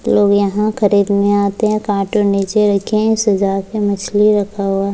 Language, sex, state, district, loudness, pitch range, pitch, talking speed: Hindi, female, Bihar, Muzaffarpur, -15 LUFS, 200-210 Hz, 205 Hz, 180 wpm